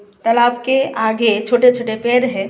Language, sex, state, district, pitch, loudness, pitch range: Hindi, female, Tripura, West Tripura, 240 Hz, -15 LUFS, 220-250 Hz